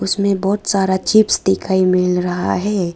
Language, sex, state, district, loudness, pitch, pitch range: Hindi, female, Arunachal Pradesh, Lower Dibang Valley, -16 LUFS, 190 Hz, 180-200 Hz